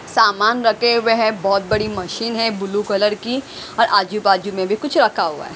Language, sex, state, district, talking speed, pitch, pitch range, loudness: Hindi, female, Haryana, Rohtak, 215 wpm, 215 Hz, 200-230 Hz, -18 LUFS